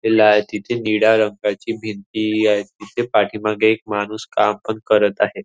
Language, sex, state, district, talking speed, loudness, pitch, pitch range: Marathi, male, Maharashtra, Nagpur, 155 wpm, -18 LUFS, 110 Hz, 105-110 Hz